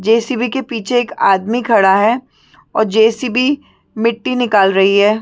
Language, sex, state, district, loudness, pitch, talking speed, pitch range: Hindi, female, Chhattisgarh, Sarguja, -14 LUFS, 230 Hz, 195 wpm, 215-250 Hz